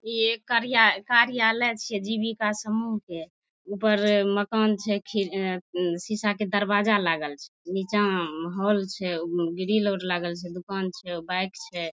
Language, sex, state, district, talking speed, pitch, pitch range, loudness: Maithili, female, Bihar, Madhepura, 145 wpm, 205 Hz, 180-215 Hz, -25 LUFS